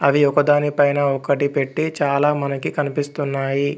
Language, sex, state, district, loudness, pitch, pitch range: Telugu, male, Telangana, Komaram Bheem, -19 LUFS, 140 Hz, 140-145 Hz